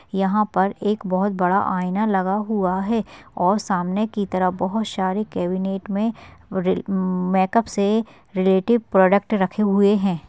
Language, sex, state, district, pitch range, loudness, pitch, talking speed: Hindi, female, Maharashtra, Pune, 185-210 Hz, -21 LUFS, 195 Hz, 145 wpm